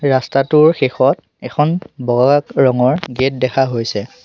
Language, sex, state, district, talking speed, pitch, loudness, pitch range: Assamese, male, Assam, Sonitpur, 115 wpm, 130 Hz, -15 LUFS, 125-145 Hz